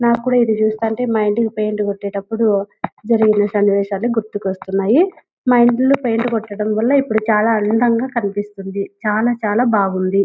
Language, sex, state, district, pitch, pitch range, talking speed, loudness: Telugu, female, Andhra Pradesh, Anantapur, 215 Hz, 205-235 Hz, 140 wpm, -17 LUFS